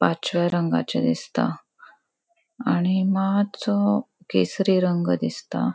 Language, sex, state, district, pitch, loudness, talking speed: Konkani, female, Goa, North and South Goa, 190 Hz, -23 LUFS, 85 wpm